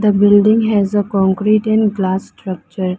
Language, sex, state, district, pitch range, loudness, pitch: English, female, Arunachal Pradesh, Lower Dibang Valley, 190-215 Hz, -14 LUFS, 205 Hz